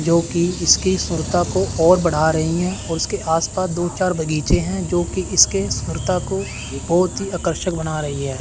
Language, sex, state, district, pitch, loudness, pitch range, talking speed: Hindi, male, Chandigarh, Chandigarh, 170 Hz, -19 LUFS, 160-180 Hz, 200 wpm